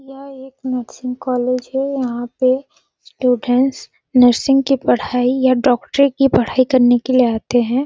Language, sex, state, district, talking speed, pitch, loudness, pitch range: Hindi, female, Chhattisgarh, Sarguja, 155 wpm, 255 Hz, -16 LUFS, 250-270 Hz